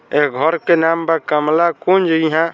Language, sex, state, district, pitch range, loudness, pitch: Bhojpuri, male, Bihar, Saran, 155-170 Hz, -15 LUFS, 165 Hz